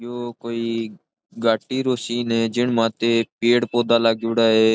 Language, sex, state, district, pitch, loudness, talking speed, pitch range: Marwari, male, Rajasthan, Nagaur, 115 Hz, -21 LUFS, 150 wpm, 115-120 Hz